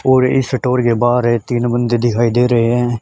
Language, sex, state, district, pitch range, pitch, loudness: Hindi, female, Haryana, Charkhi Dadri, 120-125 Hz, 120 Hz, -15 LUFS